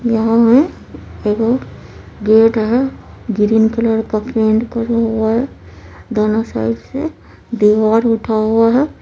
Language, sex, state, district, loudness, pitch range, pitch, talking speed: Maithili, female, Bihar, Supaul, -15 LUFS, 220-235 Hz, 225 Hz, 125 wpm